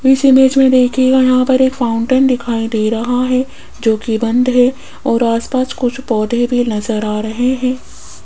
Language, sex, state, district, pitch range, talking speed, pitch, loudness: Hindi, female, Rajasthan, Jaipur, 230-260 Hz, 175 wpm, 245 Hz, -14 LUFS